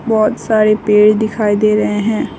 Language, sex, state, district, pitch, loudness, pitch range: Hindi, female, West Bengal, Alipurduar, 215 Hz, -13 LUFS, 210-220 Hz